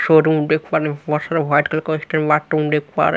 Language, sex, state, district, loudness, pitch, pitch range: Hindi, male, Haryana, Rohtak, -18 LUFS, 155 Hz, 150-155 Hz